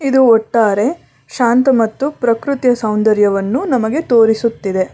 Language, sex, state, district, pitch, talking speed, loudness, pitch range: Kannada, female, Karnataka, Bangalore, 230 Hz, 95 wpm, -14 LUFS, 215-260 Hz